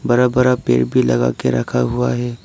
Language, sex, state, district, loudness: Hindi, male, Arunachal Pradesh, Lower Dibang Valley, -16 LUFS